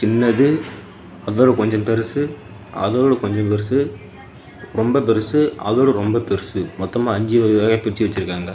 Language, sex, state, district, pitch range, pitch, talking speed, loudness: Tamil, male, Tamil Nadu, Namakkal, 100-125 Hz, 110 Hz, 120 wpm, -18 LUFS